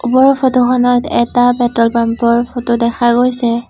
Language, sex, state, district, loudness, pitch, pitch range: Assamese, female, Assam, Sonitpur, -12 LUFS, 245 Hz, 235-245 Hz